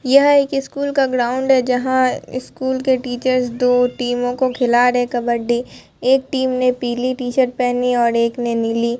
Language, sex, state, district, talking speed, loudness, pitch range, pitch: Hindi, female, Bihar, Katihar, 195 wpm, -17 LUFS, 245-260 Hz, 250 Hz